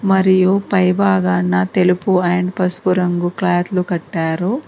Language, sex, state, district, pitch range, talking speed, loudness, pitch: Telugu, female, Telangana, Mahabubabad, 175-190 Hz, 105 wpm, -16 LUFS, 180 Hz